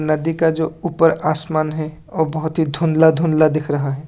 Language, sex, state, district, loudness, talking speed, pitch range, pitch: Hindi, male, Assam, Kamrup Metropolitan, -18 LUFS, 190 wpm, 155-160 Hz, 155 Hz